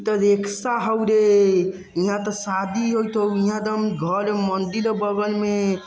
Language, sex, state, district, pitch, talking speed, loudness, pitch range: Bajjika, male, Bihar, Vaishali, 205 Hz, 165 wpm, -21 LUFS, 195-215 Hz